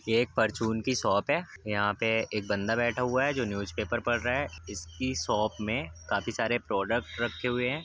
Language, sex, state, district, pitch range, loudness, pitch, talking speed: Hindi, male, Uttar Pradesh, Budaun, 105-125 Hz, -30 LUFS, 110 Hz, 205 wpm